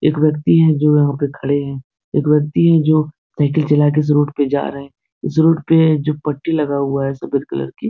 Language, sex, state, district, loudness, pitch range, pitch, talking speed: Hindi, male, Bihar, Supaul, -16 LUFS, 140-155 Hz, 150 Hz, 245 wpm